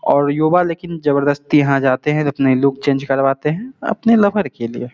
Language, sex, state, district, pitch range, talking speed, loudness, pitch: Hindi, male, Bihar, Samastipur, 135-175 Hz, 195 wpm, -16 LUFS, 145 Hz